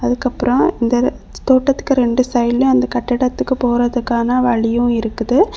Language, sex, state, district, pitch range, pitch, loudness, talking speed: Tamil, female, Tamil Nadu, Kanyakumari, 235-255 Hz, 245 Hz, -16 LUFS, 110 wpm